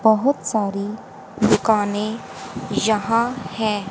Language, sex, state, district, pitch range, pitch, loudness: Hindi, female, Haryana, Rohtak, 205-225 Hz, 215 Hz, -21 LUFS